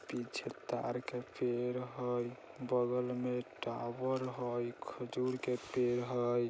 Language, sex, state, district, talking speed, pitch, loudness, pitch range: Bajjika, male, Bihar, Vaishali, 130 wpm, 125 Hz, -38 LUFS, 120-125 Hz